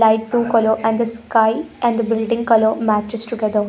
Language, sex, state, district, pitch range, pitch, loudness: English, female, Punjab, Pathankot, 220-230 Hz, 225 Hz, -17 LUFS